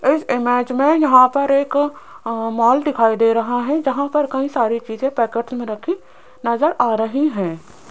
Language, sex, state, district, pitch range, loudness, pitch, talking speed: Hindi, female, Rajasthan, Jaipur, 230-280 Hz, -18 LUFS, 250 Hz, 180 wpm